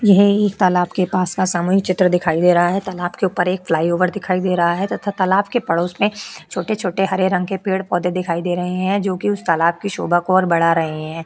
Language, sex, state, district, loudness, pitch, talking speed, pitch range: Hindi, female, Uttar Pradesh, Etah, -18 LUFS, 185 Hz, 255 wpm, 175-195 Hz